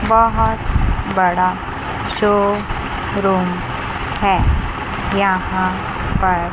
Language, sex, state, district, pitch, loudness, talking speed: Hindi, female, Chandigarh, Chandigarh, 185 Hz, -18 LUFS, 55 wpm